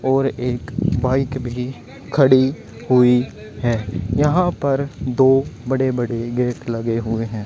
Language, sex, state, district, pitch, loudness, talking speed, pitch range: Hindi, female, Haryana, Jhajjar, 125 Hz, -19 LUFS, 130 wpm, 115-135 Hz